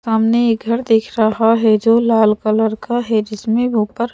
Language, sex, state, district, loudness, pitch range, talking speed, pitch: Hindi, female, Madhya Pradesh, Bhopal, -15 LUFS, 220-235 Hz, 205 wpm, 225 Hz